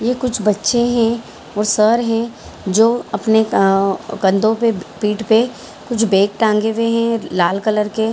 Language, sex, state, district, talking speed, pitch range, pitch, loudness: Hindi, female, Bihar, Saharsa, 170 wpm, 210-230 Hz, 220 Hz, -16 LUFS